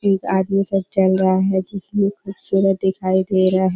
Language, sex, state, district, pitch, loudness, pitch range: Hindi, female, Bihar, Kishanganj, 190 Hz, -18 LUFS, 190-195 Hz